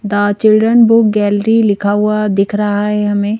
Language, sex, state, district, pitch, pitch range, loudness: Hindi, female, Madhya Pradesh, Bhopal, 210 Hz, 205-215 Hz, -12 LUFS